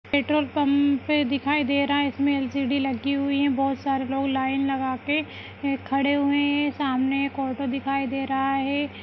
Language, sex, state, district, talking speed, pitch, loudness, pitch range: Kumaoni, female, Uttarakhand, Uttarkashi, 180 wpm, 275 Hz, -24 LUFS, 270-285 Hz